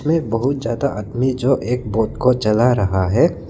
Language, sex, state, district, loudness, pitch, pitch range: Hindi, male, Arunachal Pradesh, Lower Dibang Valley, -18 LUFS, 125 Hz, 110-135 Hz